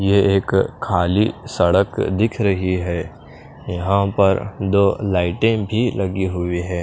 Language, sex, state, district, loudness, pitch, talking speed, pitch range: Hindi, male, Chandigarh, Chandigarh, -19 LUFS, 95 Hz, 130 wpm, 90-100 Hz